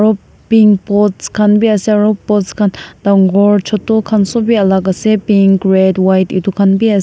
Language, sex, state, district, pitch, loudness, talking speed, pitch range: Nagamese, female, Nagaland, Kohima, 205 Hz, -11 LUFS, 195 wpm, 195-215 Hz